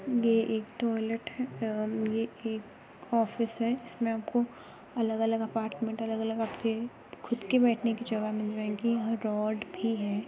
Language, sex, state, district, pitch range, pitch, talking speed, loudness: Hindi, female, Uttar Pradesh, Muzaffarnagar, 220-235 Hz, 225 Hz, 175 wpm, -31 LUFS